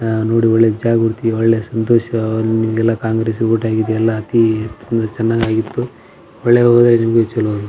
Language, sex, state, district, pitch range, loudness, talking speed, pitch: Kannada, male, Karnataka, Belgaum, 110-115 Hz, -15 LUFS, 125 wpm, 115 Hz